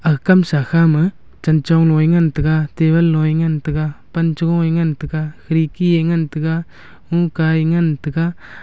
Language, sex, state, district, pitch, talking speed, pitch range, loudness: Wancho, male, Arunachal Pradesh, Longding, 160 Hz, 200 wpm, 155-165 Hz, -16 LUFS